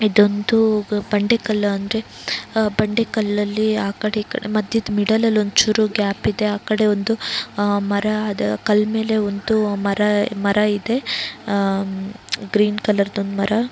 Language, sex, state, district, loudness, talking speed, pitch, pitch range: Kannada, female, Karnataka, Raichur, -19 LUFS, 125 wpm, 210 Hz, 205-220 Hz